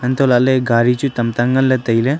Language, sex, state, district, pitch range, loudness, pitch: Wancho, male, Arunachal Pradesh, Longding, 120-130 Hz, -15 LUFS, 125 Hz